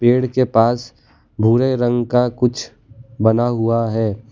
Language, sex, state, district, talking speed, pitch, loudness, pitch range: Hindi, male, Gujarat, Valsad, 140 wpm, 120 Hz, -17 LUFS, 115-125 Hz